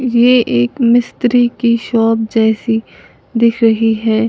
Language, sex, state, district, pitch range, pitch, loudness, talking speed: Hindi, female, Uttar Pradesh, Lalitpur, 225-240 Hz, 230 Hz, -13 LUFS, 125 wpm